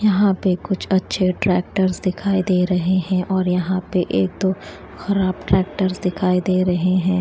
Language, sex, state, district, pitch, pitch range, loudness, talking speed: Hindi, female, Haryana, Charkhi Dadri, 185 Hz, 180-190 Hz, -19 LUFS, 165 wpm